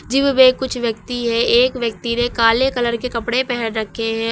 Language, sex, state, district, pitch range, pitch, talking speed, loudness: Hindi, female, Uttar Pradesh, Lucknow, 230-250 Hz, 240 Hz, 210 wpm, -17 LUFS